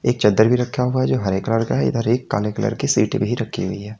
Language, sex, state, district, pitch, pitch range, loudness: Hindi, male, Uttar Pradesh, Lalitpur, 115 Hz, 105-125 Hz, -19 LUFS